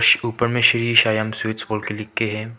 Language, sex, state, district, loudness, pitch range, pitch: Hindi, male, Arunachal Pradesh, Papum Pare, -19 LUFS, 110-115 Hz, 110 Hz